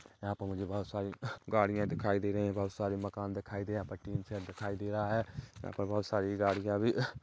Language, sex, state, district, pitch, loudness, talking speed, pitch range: Hindi, male, Chhattisgarh, Kabirdham, 100 Hz, -36 LUFS, 240 wpm, 100-105 Hz